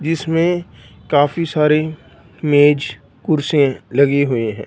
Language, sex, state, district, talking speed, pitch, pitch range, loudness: Hindi, male, Punjab, Fazilka, 105 wpm, 145 Hz, 140-160 Hz, -16 LUFS